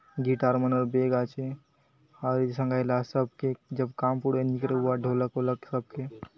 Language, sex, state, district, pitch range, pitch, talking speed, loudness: Halbi, male, Chhattisgarh, Bastar, 125-135 Hz, 130 Hz, 160 wpm, -28 LUFS